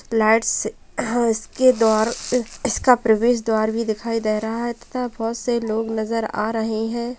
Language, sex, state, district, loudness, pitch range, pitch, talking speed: Hindi, female, Bihar, Purnia, -21 LUFS, 220-240 Hz, 225 Hz, 165 wpm